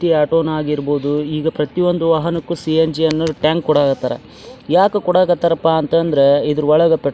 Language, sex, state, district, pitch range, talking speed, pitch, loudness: Kannada, male, Karnataka, Dharwad, 150-165 Hz, 170 wpm, 160 Hz, -16 LUFS